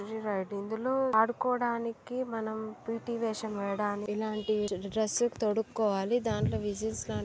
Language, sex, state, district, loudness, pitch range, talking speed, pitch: Telugu, female, Andhra Pradesh, Srikakulam, -32 LUFS, 210-230 Hz, 90 wpm, 220 Hz